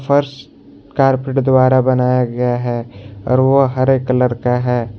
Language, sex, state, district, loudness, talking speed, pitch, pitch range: Hindi, male, Jharkhand, Garhwa, -15 LUFS, 145 wpm, 130 Hz, 125-135 Hz